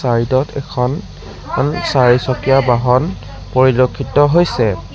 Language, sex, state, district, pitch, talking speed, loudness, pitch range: Assamese, male, Assam, Sonitpur, 130 Hz, 95 wpm, -15 LUFS, 125-140 Hz